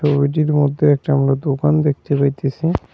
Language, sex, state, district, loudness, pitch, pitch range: Bengali, male, West Bengal, Cooch Behar, -17 LUFS, 145 Hz, 140-150 Hz